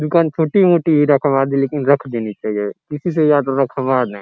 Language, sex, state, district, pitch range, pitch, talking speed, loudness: Hindi, male, Uttar Pradesh, Gorakhpur, 130-155 Hz, 140 Hz, 215 wpm, -16 LUFS